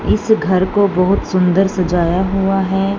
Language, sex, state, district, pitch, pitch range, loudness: Hindi, female, Punjab, Fazilka, 190 Hz, 185-195 Hz, -15 LUFS